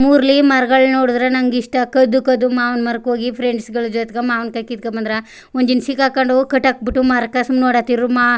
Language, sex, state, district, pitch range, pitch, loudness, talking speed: Kannada, female, Karnataka, Chamarajanagar, 240-260 Hz, 250 Hz, -16 LUFS, 155 wpm